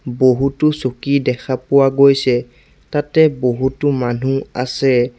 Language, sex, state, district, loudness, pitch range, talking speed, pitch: Assamese, male, Assam, Sonitpur, -16 LUFS, 125-140 Hz, 105 wpm, 130 Hz